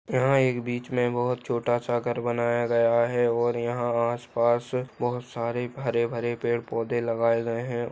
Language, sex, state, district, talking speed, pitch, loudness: Hindi, male, Maharashtra, Nagpur, 150 wpm, 120 Hz, -26 LUFS